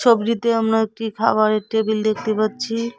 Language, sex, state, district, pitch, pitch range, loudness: Bengali, female, West Bengal, Cooch Behar, 220 Hz, 215-230 Hz, -20 LUFS